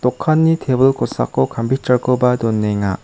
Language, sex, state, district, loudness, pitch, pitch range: Garo, male, Meghalaya, South Garo Hills, -16 LUFS, 125 Hz, 110-135 Hz